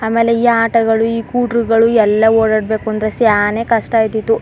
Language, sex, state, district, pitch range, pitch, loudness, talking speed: Kannada, female, Karnataka, Chamarajanagar, 220-230 Hz, 225 Hz, -13 LUFS, 165 wpm